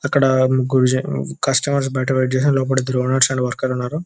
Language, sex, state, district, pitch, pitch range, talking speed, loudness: Telugu, male, Telangana, Nalgonda, 130 Hz, 130-135 Hz, 175 wpm, -18 LUFS